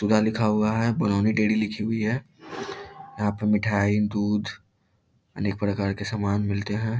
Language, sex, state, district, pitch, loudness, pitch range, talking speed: Hindi, male, Bihar, Lakhisarai, 105 Hz, -25 LUFS, 100-110 Hz, 165 wpm